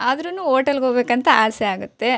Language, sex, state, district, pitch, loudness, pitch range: Kannada, female, Karnataka, Shimoga, 255 Hz, -18 LUFS, 235-280 Hz